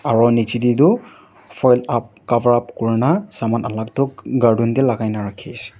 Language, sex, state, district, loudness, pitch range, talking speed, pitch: Nagamese, male, Nagaland, Dimapur, -18 LUFS, 115-130 Hz, 195 wpm, 120 Hz